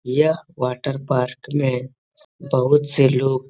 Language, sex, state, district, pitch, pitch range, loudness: Hindi, male, Uttar Pradesh, Etah, 135 Hz, 130-145 Hz, -20 LUFS